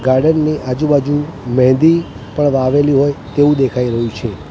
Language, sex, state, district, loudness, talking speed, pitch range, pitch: Gujarati, male, Gujarat, Gandhinagar, -14 LUFS, 160 wpm, 125-145 Hz, 140 Hz